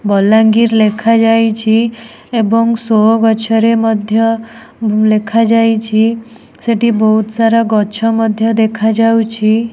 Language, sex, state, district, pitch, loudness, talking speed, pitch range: Odia, female, Odisha, Nuapada, 225 Hz, -12 LUFS, 100 wpm, 220-230 Hz